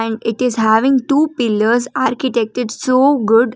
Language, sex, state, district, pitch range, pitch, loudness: English, female, Karnataka, Bangalore, 225-260 Hz, 240 Hz, -15 LUFS